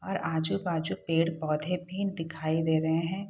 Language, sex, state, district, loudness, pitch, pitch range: Hindi, female, Bihar, Saharsa, -30 LUFS, 165 Hz, 160-180 Hz